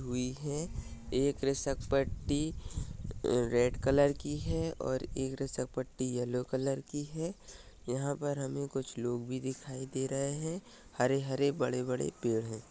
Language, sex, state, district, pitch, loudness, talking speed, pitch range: Hindi, male, Maharashtra, Solapur, 135 Hz, -35 LUFS, 135 wpm, 125-140 Hz